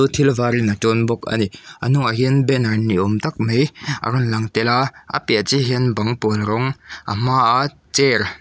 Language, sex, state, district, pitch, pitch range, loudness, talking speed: Mizo, male, Mizoram, Aizawl, 120 Hz, 110-135 Hz, -18 LUFS, 215 wpm